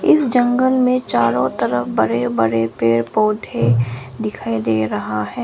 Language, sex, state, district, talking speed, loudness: Hindi, female, Arunachal Pradesh, Lower Dibang Valley, 145 wpm, -18 LUFS